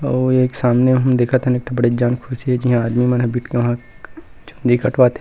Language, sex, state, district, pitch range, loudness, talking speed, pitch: Chhattisgarhi, male, Chhattisgarh, Rajnandgaon, 120-130 Hz, -17 LUFS, 230 wpm, 125 Hz